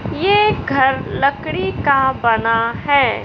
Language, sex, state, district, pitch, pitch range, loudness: Hindi, male, Madhya Pradesh, Katni, 265 Hz, 230-285 Hz, -16 LUFS